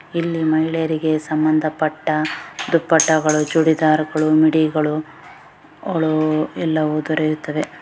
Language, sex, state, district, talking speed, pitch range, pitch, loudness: Kannada, female, Karnataka, Bellary, 75 wpm, 155-160 Hz, 155 Hz, -18 LUFS